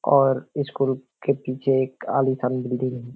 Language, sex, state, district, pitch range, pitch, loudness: Hindi, male, Bihar, Kishanganj, 125-135 Hz, 130 Hz, -24 LUFS